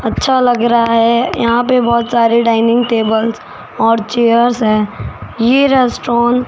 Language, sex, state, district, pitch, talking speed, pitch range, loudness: Hindi, female, Rajasthan, Jaipur, 235 Hz, 150 wpm, 230-245 Hz, -12 LUFS